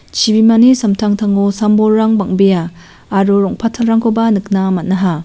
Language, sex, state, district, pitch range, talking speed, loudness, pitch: Garo, female, Meghalaya, West Garo Hills, 195-220 Hz, 105 wpm, -12 LUFS, 205 Hz